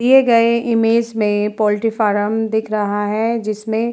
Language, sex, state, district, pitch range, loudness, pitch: Hindi, female, Uttar Pradesh, Muzaffarnagar, 210-230 Hz, -17 LUFS, 220 Hz